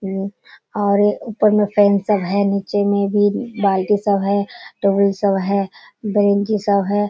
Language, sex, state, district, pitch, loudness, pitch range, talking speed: Hindi, female, Bihar, Kishanganj, 200 Hz, -17 LUFS, 200-205 Hz, 160 wpm